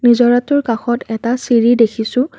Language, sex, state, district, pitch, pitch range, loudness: Assamese, female, Assam, Kamrup Metropolitan, 240 Hz, 230-250 Hz, -14 LUFS